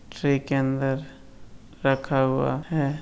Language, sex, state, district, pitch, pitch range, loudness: Hindi, male, Uttar Pradesh, Etah, 135 Hz, 135-140 Hz, -25 LUFS